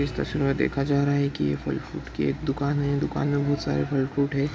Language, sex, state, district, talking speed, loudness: Hindi, male, Bihar, East Champaran, 290 wpm, -26 LUFS